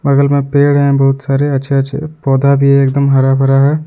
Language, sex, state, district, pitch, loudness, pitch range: Hindi, male, Jharkhand, Deoghar, 140 Hz, -11 LUFS, 135-140 Hz